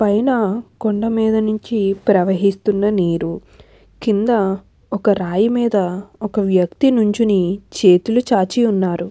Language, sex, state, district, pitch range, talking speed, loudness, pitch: Telugu, female, Andhra Pradesh, Krishna, 190-220 Hz, 105 wpm, -17 LUFS, 205 Hz